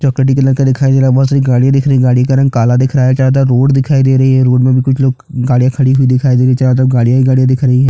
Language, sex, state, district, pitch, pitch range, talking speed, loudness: Hindi, male, Chhattisgarh, Jashpur, 130 Hz, 130-135 Hz, 355 wpm, -10 LUFS